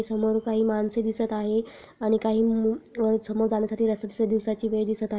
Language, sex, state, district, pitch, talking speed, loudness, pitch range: Marathi, female, Maharashtra, Chandrapur, 220 Hz, 210 wpm, -26 LUFS, 215-225 Hz